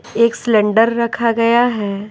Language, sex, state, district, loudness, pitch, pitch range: Hindi, female, Bihar, Patna, -15 LUFS, 230 Hz, 215-235 Hz